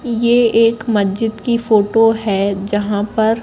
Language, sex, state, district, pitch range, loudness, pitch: Hindi, female, Madhya Pradesh, Katni, 205-230 Hz, -15 LUFS, 225 Hz